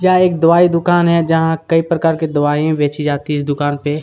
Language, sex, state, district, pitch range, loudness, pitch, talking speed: Hindi, male, Chhattisgarh, Kabirdham, 145-170 Hz, -14 LUFS, 160 Hz, 255 wpm